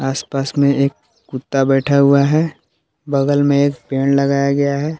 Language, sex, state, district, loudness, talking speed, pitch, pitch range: Hindi, male, Jharkhand, Palamu, -16 LUFS, 170 wpm, 140 Hz, 135-145 Hz